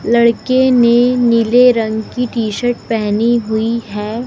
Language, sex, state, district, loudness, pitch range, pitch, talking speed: Hindi, female, Madhya Pradesh, Dhar, -13 LUFS, 220-245 Hz, 235 Hz, 140 wpm